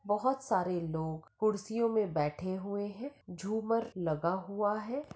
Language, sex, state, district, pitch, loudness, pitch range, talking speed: Hindi, female, Maharashtra, Pune, 205 Hz, -34 LUFS, 180-225 Hz, 140 wpm